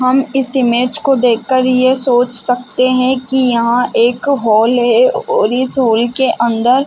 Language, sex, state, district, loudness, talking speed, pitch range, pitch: Hindi, female, Chhattisgarh, Raigarh, -13 LUFS, 165 wpm, 240-265 Hz, 255 Hz